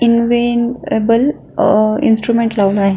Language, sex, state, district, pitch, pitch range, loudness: Marathi, female, Maharashtra, Solapur, 235 Hz, 215-240 Hz, -14 LUFS